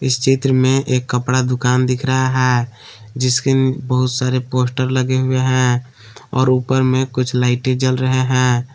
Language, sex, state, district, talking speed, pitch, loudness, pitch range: Hindi, male, Jharkhand, Palamu, 170 wpm, 130 Hz, -16 LUFS, 125-130 Hz